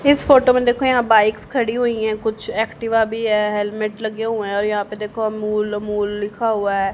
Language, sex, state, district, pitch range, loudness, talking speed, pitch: Hindi, female, Haryana, Charkhi Dadri, 210-230 Hz, -19 LUFS, 225 wpm, 220 Hz